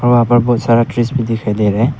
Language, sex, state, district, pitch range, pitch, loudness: Hindi, male, Arunachal Pradesh, Papum Pare, 115-120 Hz, 120 Hz, -14 LUFS